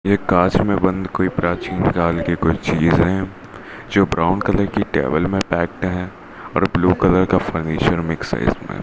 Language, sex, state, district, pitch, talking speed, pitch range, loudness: Hindi, male, Rajasthan, Bikaner, 90 Hz, 190 wpm, 85-95 Hz, -18 LUFS